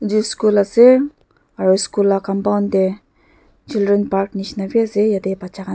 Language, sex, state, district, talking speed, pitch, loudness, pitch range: Nagamese, female, Nagaland, Dimapur, 165 wpm, 200 Hz, -17 LUFS, 195-215 Hz